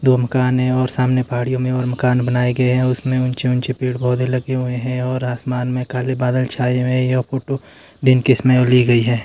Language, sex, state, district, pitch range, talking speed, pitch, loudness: Hindi, male, Himachal Pradesh, Shimla, 125-130 Hz, 235 wpm, 125 Hz, -18 LUFS